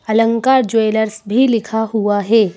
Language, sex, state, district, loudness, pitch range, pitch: Hindi, female, Madhya Pradesh, Bhopal, -15 LUFS, 215-230 Hz, 220 Hz